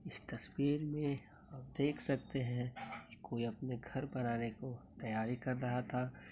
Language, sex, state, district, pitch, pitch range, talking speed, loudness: Hindi, male, Bihar, Muzaffarpur, 125 Hz, 120-140 Hz, 150 wpm, -40 LUFS